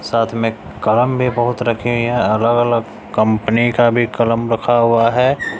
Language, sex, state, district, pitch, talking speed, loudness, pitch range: Hindi, male, Bihar, West Champaran, 115 Hz, 170 wpm, -16 LUFS, 115-120 Hz